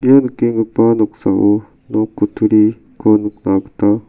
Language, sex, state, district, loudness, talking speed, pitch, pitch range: Garo, male, Meghalaya, South Garo Hills, -15 LUFS, 115 wpm, 110 Hz, 105-115 Hz